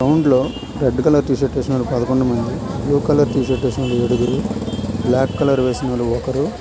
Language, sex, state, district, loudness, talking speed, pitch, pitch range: Telugu, male, Andhra Pradesh, Visakhapatnam, -18 LUFS, 170 wpm, 130 Hz, 120-135 Hz